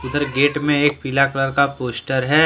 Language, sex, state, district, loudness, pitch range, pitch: Hindi, male, Jharkhand, Deoghar, -18 LUFS, 135-145 Hz, 140 Hz